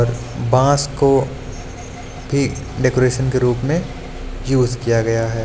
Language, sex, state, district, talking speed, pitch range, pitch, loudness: Hindi, male, Uttar Pradesh, Lucknow, 120 wpm, 120-135 Hz, 125 Hz, -18 LUFS